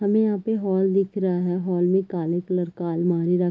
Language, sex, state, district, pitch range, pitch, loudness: Hindi, female, Chhattisgarh, Raigarh, 175-195 Hz, 180 Hz, -23 LUFS